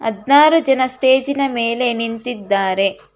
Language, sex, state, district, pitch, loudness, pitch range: Kannada, female, Karnataka, Bangalore, 245 Hz, -16 LUFS, 225-270 Hz